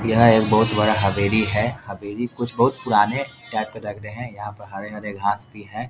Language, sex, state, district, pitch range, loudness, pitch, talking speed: Hindi, male, Bihar, Jahanabad, 105-120 Hz, -21 LUFS, 110 Hz, 215 wpm